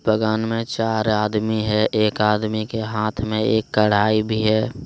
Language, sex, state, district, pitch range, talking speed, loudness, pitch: Hindi, male, Jharkhand, Deoghar, 105-110 Hz, 175 wpm, -20 LUFS, 110 Hz